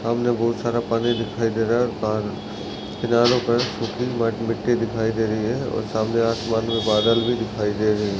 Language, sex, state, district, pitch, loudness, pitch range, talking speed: Hindi, male, Chhattisgarh, Raigarh, 115 Hz, -22 LUFS, 110-120 Hz, 190 wpm